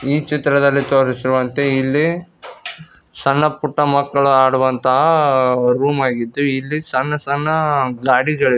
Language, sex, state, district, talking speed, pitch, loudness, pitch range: Kannada, male, Karnataka, Koppal, 105 wpm, 140 Hz, -16 LUFS, 130-150 Hz